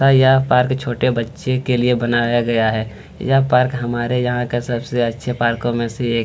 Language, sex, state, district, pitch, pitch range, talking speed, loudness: Hindi, male, Chhattisgarh, Kabirdham, 120 Hz, 120-130 Hz, 210 wpm, -18 LUFS